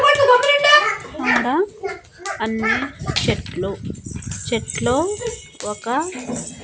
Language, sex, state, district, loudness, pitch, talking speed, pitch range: Telugu, female, Andhra Pradesh, Annamaya, -19 LUFS, 315 Hz, 45 wpm, 265-410 Hz